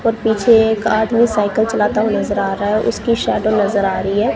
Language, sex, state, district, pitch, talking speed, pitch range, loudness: Hindi, female, Punjab, Kapurthala, 215 Hz, 235 wpm, 205-225 Hz, -15 LUFS